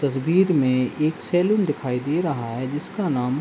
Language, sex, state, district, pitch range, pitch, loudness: Hindi, male, Uttar Pradesh, Ghazipur, 130-175 Hz, 145 Hz, -22 LUFS